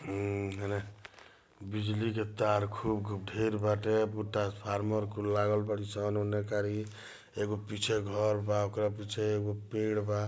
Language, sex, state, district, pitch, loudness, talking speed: Bhojpuri, male, Bihar, Gopalganj, 105 Hz, -33 LUFS, 130 wpm